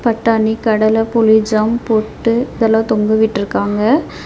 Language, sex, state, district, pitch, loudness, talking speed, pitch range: Tamil, female, Tamil Nadu, Nilgiris, 220 Hz, -14 LUFS, 115 wpm, 215-230 Hz